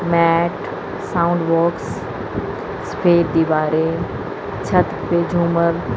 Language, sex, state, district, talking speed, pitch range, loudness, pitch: Hindi, female, Chandigarh, Chandigarh, 80 wpm, 165-170 Hz, -19 LUFS, 170 Hz